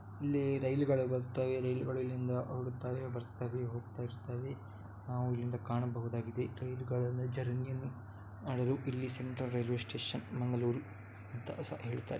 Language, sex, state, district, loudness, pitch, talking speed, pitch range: Kannada, male, Karnataka, Dakshina Kannada, -38 LUFS, 125 Hz, 115 wpm, 120-130 Hz